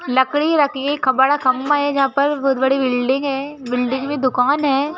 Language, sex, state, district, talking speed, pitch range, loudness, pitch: Hindi, female, Madhya Pradesh, Bhopal, 190 wpm, 260-285 Hz, -18 LUFS, 275 Hz